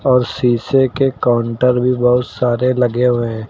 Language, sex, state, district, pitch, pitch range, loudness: Hindi, male, Uttar Pradesh, Lucknow, 125 Hz, 120-125 Hz, -15 LUFS